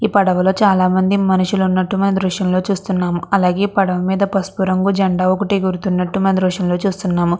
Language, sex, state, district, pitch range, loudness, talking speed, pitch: Telugu, female, Andhra Pradesh, Krishna, 185-195 Hz, -16 LUFS, 145 wpm, 190 Hz